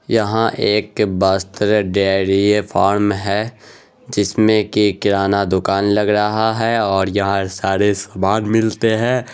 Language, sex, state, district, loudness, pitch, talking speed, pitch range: Hindi, male, Bihar, Araria, -16 LUFS, 105 Hz, 120 wpm, 100-110 Hz